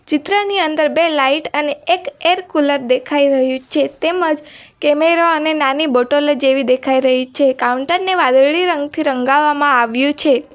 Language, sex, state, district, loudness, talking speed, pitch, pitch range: Gujarati, female, Gujarat, Valsad, -15 LUFS, 155 wpm, 290 Hz, 270-320 Hz